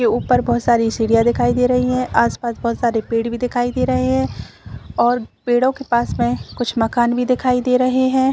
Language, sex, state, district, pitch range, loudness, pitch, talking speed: Hindi, female, Chhattisgarh, Raigarh, 230-250 Hz, -18 LUFS, 240 Hz, 225 wpm